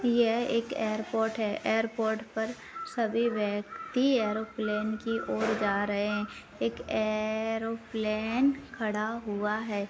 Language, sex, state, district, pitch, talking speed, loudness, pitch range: Hindi, female, Bihar, Jahanabad, 220 Hz, 135 wpm, -30 LUFS, 215-230 Hz